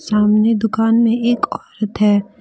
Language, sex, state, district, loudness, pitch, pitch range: Hindi, female, Jharkhand, Deoghar, -16 LUFS, 220 Hz, 210-225 Hz